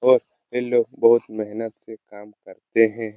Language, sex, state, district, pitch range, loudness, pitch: Hindi, male, Bihar, Lakhisarai, 110-120 Hz, -21 LUFS, 115 Hz